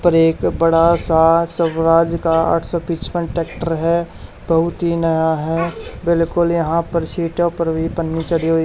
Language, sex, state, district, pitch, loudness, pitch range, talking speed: Hindi, male, Haryana, Charkhi Dadri, 165 Hz, -17 LUFS, 165-170 Hz, 180 wpm